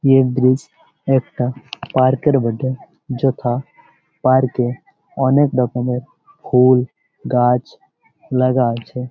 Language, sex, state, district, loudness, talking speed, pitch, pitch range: Bengali, male, West Bengal, Jalpaiguri, -17 LUFS, 110 wpm, 130 Hz, 125-135 Hz